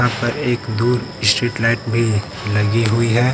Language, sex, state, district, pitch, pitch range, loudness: Hindi, male, Uttar Pradesh, Lucknow, 115 Hz, 110-120 Hz, -18 LUFS